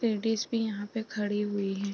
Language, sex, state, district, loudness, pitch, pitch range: Hindi, female, Bihar, East Champaran, -31 LUFS, 210 Hz, 205-225 Hz